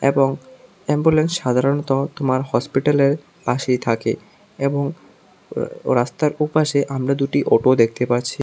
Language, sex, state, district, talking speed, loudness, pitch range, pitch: Bengali, male, Tripura, South Tripura, 115 wpm, -19 LUFS, 130-150 Hz, 140 Hz